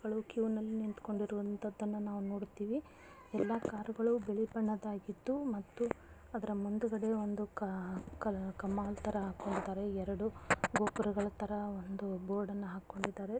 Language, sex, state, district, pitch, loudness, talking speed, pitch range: Kannada, female, Karnataka, Bijapur, 210 Hz, -38 LUFS, 95 wpm, 200-220 Hz